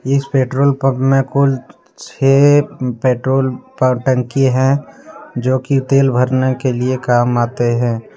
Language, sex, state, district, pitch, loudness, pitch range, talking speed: Hindi, male, Jharkhand, Deoghar, 130 Hz, -15 LUFS, 125-135 Hz, 130 wpm